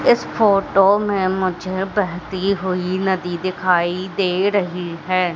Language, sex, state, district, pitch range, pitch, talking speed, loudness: Hindi, female, Madhya Pradesh, Katni, 180-195 Hz, 185 Hz, 125 wpm, -19 LUFS